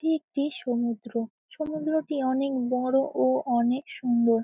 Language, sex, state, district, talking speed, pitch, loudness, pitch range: Bengali, female, West Bengal, Jalpaiguri, 120 wpm, 255 Hz, -27 LUFS, 235-290 Hz